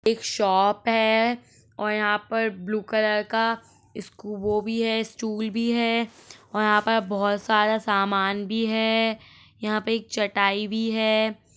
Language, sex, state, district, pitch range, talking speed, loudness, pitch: Hindi, female, Uttarakhand, Tehri Garhwal, 210-225 Hz, 155 wpm, -24 LUFS, 220 Hz